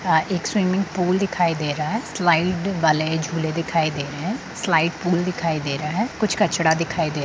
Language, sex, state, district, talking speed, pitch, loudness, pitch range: Hindi, female, Bihar, Sitamarhi, 215 wpm, 170 Hz, -22 LUFS, 160-190 Hz